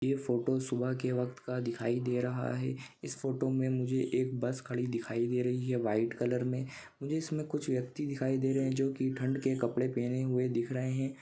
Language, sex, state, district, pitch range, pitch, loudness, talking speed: Hindi, male, Maharashtra, Nagpur, 125-130 Hz, 125 Hz, -34 LUFS, 220 wpm